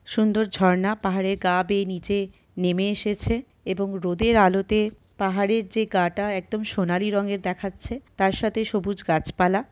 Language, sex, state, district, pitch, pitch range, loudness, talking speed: Bengali, female, West Bengal, Purulia, 200 Hz, 185-215 Hz, -24 LUFS, 140 wpm